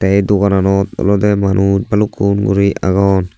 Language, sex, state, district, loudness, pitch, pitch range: Chakma, male, Tripura, Unakoti, -13 LUFS, 100 Hz, 95-100 Hz